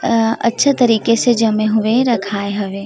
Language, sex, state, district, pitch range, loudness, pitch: Chhattisgarhi, female, Chhattisgarh, Rajnandgaon, 210-235 Hz, -15 LUFS, 225 Hz